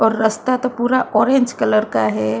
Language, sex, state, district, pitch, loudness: Hindi, female, Maharashtra, Mumbai Suburban, 220 Hz, -17 LUFS